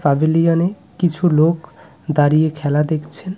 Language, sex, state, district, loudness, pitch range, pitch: Bengali, male, West Bengal, Cooch Behar, -17 LUFS, 150-170 Hz, 155 Hz